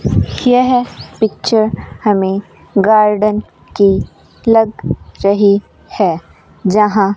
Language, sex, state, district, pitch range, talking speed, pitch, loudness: Hindi, female, Rajasthan, Bikaner, 200-220 Hz, 85 wpm, 210 Hz, -14 LUFS